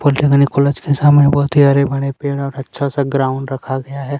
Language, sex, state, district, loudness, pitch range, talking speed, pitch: Hindi, male, Chhattisgarh, Kabirdham, -15 LUFS, 140-145 Hz, 230 wpm, 140 Hz